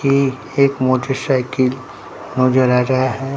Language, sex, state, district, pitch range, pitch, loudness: Hindi, male, Bihar, Katihar, 130-135 Hz, 130 Hz, -17 LUFS